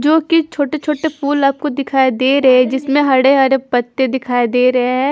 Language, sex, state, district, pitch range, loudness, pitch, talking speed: Hindi, female, Punjab, Fazilka, 255-290 Hz, -14 LUFS, 270 Hz, 210 wpm